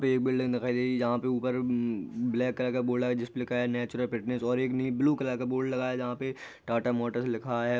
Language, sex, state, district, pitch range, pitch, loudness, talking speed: Hindi, male, Bihar, Jahanabad, 120-130 Hz, 125 Hz, -30 LUFS, 255 wpm